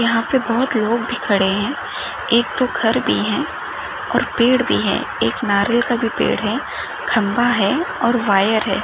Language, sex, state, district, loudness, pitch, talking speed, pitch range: Hindi, female, Maharashtra, Chandrapur, -18 LUFS, 230 Hz, 185 wpm, 210-245 Hz